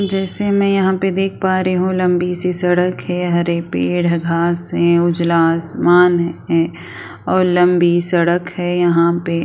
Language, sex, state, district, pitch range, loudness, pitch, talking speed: Hindi, female, Chhattisgarh, Sukma, 170-185 Hz, -16 LUFS, 175 Hz, 160 wpm